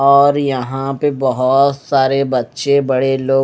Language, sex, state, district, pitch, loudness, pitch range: Hindi, male, Punjab, Fazilka, 135 Hz, -15 LUFS, 130-140 Hz